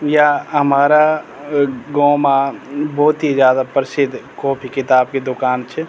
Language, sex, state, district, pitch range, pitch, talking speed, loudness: Garhwali, male, Uttarakhand, Tehri Garhwal, 135-145 Hz, 140 Hz, 135 wpm, -16 LUFS